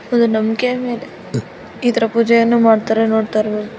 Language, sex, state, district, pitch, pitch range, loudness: Kannada, female, Karnataka, Gulbarga, 230 Hz, 220-235 Hz, -16 LUFS